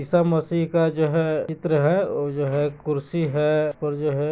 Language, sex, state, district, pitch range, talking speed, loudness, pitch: Bhojpuri, male, Bihar, East Champaran, 145-165 Hz, 195 wpm, -23 LUFS, 155 Hz